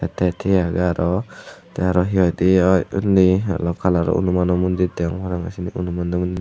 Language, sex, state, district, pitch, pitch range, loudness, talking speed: Chakma, male, Tripura, Unakoti, 90 Hz, 90-95 Hz, -19 LUFS, 180 wpm